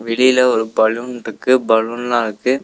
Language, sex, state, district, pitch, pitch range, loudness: Tamil, male, Tamil Nadu, Nilgiris, 120 Hz, 110-125 Hz, -16 LUFS